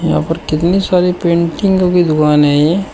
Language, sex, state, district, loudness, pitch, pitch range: Hindi, male, Uttar Pradesh, Shamli, -12 LUFS, 175 Hz, 155-180 Hz